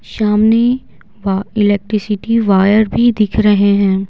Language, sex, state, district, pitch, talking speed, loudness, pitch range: Hindi, female, Bihar, Patna, 210 Hz, 115 wpm, -13 LUFS, 200-220 Hz